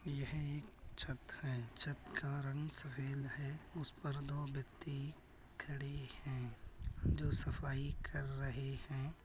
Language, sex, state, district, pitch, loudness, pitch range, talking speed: Hindi, male, Uttar Pradesh, Budaun, 140 Hz, -43 LUFS, 135-145 Hz, 130 wpm